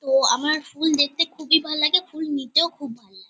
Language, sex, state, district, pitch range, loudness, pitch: Bengali, female, West Bengal, Kolkata, 280-320 Hz, -20 LUFS, 305 Hz